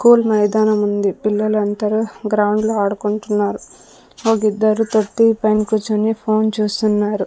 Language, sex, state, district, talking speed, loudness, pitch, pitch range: Telugu, female, Andhra Pradesh, Sri Satya Sai, 90 wpm, -17 LUFS, 215 Hz, 210-220 Hz